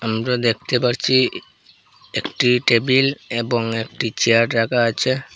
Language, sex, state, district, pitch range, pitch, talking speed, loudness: Bengali, male, Assam, Hailakandi, 115-125 Hz, 120 Hz, 110 wpm, -18 LUFS